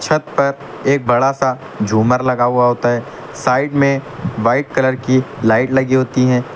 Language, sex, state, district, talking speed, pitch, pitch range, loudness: Hindi, male, Uttar Pradesh, Lucknow, 175 wpm, 130 Hz, 125-140 Hz, -16 LUFS